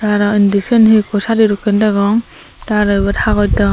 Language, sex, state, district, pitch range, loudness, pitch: Chakma, female, Tripura, Dhalai, 200-215 Hz, -13 LUFS, 205 Hz